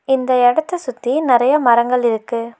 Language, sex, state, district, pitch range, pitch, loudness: Tamil, female, Tamil Nadu, Nilgiris, 235-265 Hz, 250 Hz, -15 LUFS